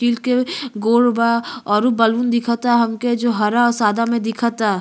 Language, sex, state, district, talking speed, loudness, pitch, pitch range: Bhojpuri, female, Uttar Pradesh, Gorakhpur, 175 wpm, -17 LUFS, 235 Hz, 225-240 Hz